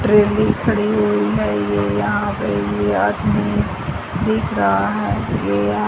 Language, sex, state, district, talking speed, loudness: Hindi, female, Haryana, Charkhi Dadri, 155 wpm, -18 LUFS